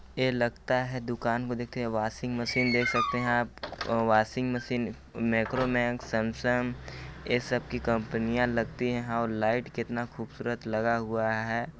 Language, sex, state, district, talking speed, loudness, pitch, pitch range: Hindi, male, Chhattisgarh, Balrampur, 155 wpm, -29 LUFS, 120 Hz, 115-125 Hz